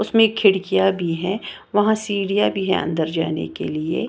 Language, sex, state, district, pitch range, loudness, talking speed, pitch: Hindi, female, Haryana, Jhajjar, 165-205 Hz, -20 LUFS, 175 wpm, 195 Hz